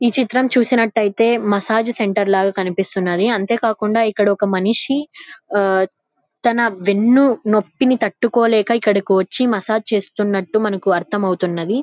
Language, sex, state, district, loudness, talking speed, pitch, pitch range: Telugu, female, Andhra Pradesh, Anantapur, -17 LUFS, 125 wpm, 215 Hz, 195-235 Hz